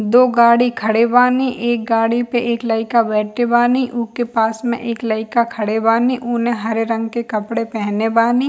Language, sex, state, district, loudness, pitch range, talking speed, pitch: Bhojpuri, female, Bihar, East Champaran, -17 LUFS, 225-240 Hz, 175 wpm, 235 Hz